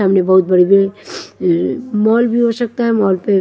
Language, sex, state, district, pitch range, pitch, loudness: Hindi, female, Punjab, Kapurthala, 190-235 Hz, 200 Hz, -14 LUFS